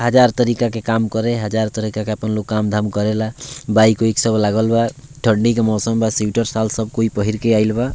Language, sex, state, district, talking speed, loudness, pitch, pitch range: Bhojpuri, male, Bihar, Muzaffarpur, 250 wpm, -17 LUFS, 110 Hz, 110-115 Hz